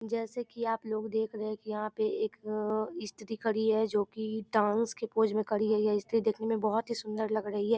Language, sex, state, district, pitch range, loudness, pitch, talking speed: Maithili, female, Bihar, Darbhanga, 215-225 Hz, -32 LUFS, 220 Hz, 255 wpm